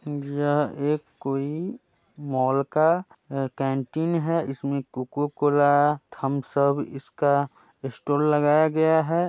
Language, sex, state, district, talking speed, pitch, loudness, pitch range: Hindi, male, Bihar, Muzaffarpur, 95 wpm, 145 Hz, -24 LUFS, 135-155 Hz